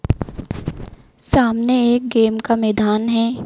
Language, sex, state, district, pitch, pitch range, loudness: Hindi, female, Madhya Pradesh, Dhar, 230 Hz, 220-240 Hz, -18 LUFS